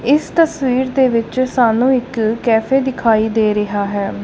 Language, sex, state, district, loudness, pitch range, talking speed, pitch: Punjabi, female, Punjab, Kapurthala, -15 LUFS, 220-260 Hz, 155 wpm, 235 Hz